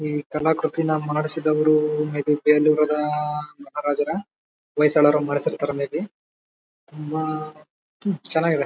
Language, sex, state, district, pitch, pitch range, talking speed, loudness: Kannada, male, Karnataka, Bellary, 150 Hz, 150-155 Hz, 95 wpm, -21 LUFS